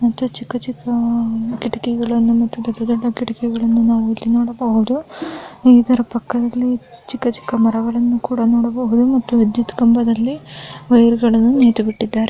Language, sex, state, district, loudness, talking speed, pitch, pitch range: Kannada, female, Karnataka, Bellary, -16 LUFS, 100 wpm, 235 Hz, 230-245 Hz